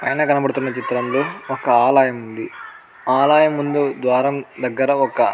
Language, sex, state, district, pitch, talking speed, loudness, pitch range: Telugu, male, Andhra Pradesh, Anantapur, 135 Hz, 145 wpm, -18 LUFS, 125-140 Hz